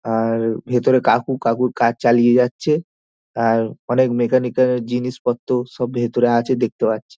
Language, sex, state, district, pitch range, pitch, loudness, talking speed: Bengali, male, West Bengal, Dakshin Dinajpur, 115-125 Hz, 120 Hz, -18 LUFS, 150 wpm